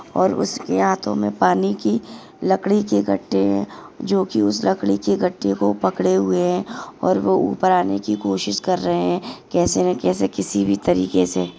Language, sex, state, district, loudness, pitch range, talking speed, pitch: Hindi, female, Maharashtra, Aurangabad, -20 LUFS, 95-105 Hz, 190 wpm, 100 Hz